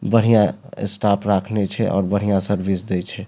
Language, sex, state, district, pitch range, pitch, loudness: Maithili, male, Bihar, Supaul, 95-105 Hz, 100 Hz, -20 LUFS